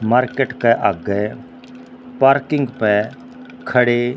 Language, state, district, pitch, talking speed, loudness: Haryanvi, Haryana, Rohtak, 130 Hz, 100 wpm, -17 LUFS